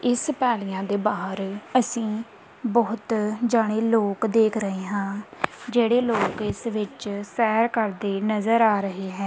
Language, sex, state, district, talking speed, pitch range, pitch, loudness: Punjabi, female, Punjab, Kapurthala, 135 wpm, 200-230 Hz, 220 Hz, -24 LUFS